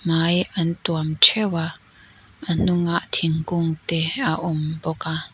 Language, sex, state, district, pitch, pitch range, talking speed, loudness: Mizo, female, Mizoram, Aizawl, 165 Hz, 160-170 Hz, 145 wpm, -21 LUFS